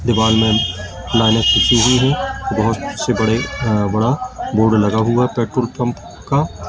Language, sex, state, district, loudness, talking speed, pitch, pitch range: Hindi, male, Madhya Pradesh, Katni, -16 LUFS, 125 wpm, 115 Hz, 110-125 Hz